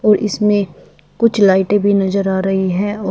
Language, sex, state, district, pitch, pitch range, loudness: Hindi, female, Uttar Pradesh, Shamli, 200 Hz, 190-210 Hz, -15 LUFS